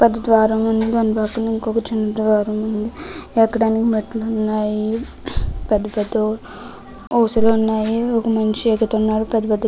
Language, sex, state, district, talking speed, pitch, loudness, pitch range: Telugu, female, Andhra Pradesh, Krishna, 120 wpm, 220 Hz, -19 LUFS, 215-225 Hz